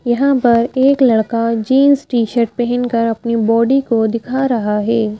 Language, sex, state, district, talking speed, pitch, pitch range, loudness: Hindi, female, Madhya Pradesh, Bhopal, 160 wpm, 235 Hz, 230-260 Hz, -14 LUFS